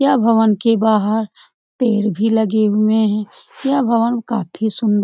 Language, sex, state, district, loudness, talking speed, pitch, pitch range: Hindi, female, Bihar, Jamui, -16 LUFS, 165 wpm, 220 Hz, 215-230 Hz